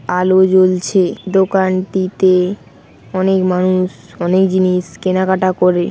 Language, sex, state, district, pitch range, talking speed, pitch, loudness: Bengali, female, West Bengal, Paschim Medinipur, 180-190 Hz, 90 wpm, 185 Hz, -14 LUFS